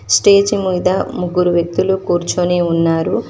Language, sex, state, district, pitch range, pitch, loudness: Telugu, female, Telangana, Mahabubabad, 170-190 Hz, 180 Hz, -15 LUFS